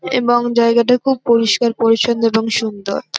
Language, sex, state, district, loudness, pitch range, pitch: Bengali, female, West Bengal, North 24 Parganas, -15 LUFS, 225-240 Hz, 235 Hz